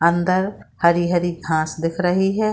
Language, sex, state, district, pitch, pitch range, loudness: Hindi, female, Bihar, Saran, 175 Hz, 170-185 Hz, -20 LUFS